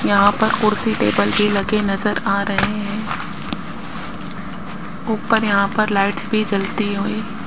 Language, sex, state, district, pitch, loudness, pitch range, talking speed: Hindi, male, Rajasthan, Jaipur, 205 Hz, -19 LUFS, 200-215 Hz, 145 wpm